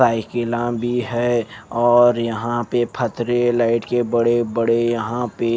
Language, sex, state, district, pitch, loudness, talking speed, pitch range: Hindi, male, Maharashtra, Mumbai Suburban, 120 Hz, -19 LUFS, 140 wpm, 115-120 Hz